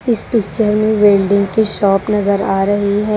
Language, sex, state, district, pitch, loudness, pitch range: Hindi, female, Haryana, Rohtak, 205 Hz, -14 LUFS, 200-215 Hz